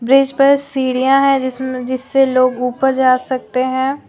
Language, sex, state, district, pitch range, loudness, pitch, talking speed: Hindi, female, Jharkhand, Deoghar, 255-270 Hz, -15 LUFS, 260 Hz, 160 wpm